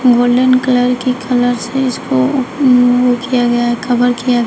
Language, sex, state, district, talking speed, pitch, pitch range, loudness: Hindi, female, Uttar Pradesh, Shamli, 175 wpm, 250 Hz, 245-255 Hz, -13 LUFS